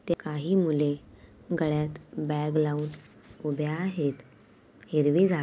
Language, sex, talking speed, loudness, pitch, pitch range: Marathi, female, 100 wpm, -28 LUFS, 150 Hz, 145-155 Hz